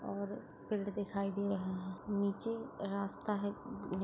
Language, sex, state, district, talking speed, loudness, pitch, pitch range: Hindi, female, Maharashtra, Solapur, 135 wpm, -39 LUFS, 200 Hz, 200-205 Hz